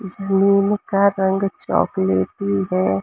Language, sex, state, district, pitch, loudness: Hindi, male, Maharashtra, Mumbai Suburban, 195 Hz, -19 LUFS